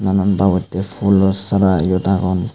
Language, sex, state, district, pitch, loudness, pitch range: Chakma, male, Tripura, Unakoti, 95 Hz, -16 LUFS, 95-100 Hz